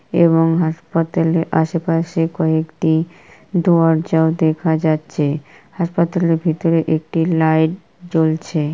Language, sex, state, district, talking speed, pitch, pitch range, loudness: Bengali, female, West Bengal, Purulia, 90 wpm, 165 Hz, 160-170 Hz, -17 LUFS